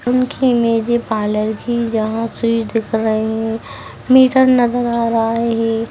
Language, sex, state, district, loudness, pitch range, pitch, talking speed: Hindi, female, Bihar, Sitamarhi, -16 LUFS, 225-240 Hz, 230 Hz, 150 wpm